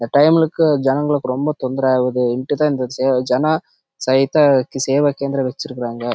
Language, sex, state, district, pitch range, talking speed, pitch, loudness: Tamil, male, Karnataka, Chamarajanagar, 125-150 Hz, 80 wpm, 135 Hz, -17 LUFS